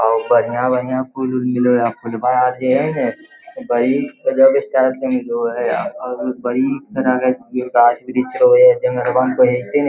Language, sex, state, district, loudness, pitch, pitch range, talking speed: Magahi, male, Bihar, Lakhisarai, -16 LUFS, 125 Hz, 125-135 Hz, 115 wpm